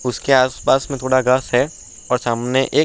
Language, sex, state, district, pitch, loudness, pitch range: Hindi, male, Uttar Pradesh, Budaun, 130 Hz, -18 LUFS, 125-135 Hz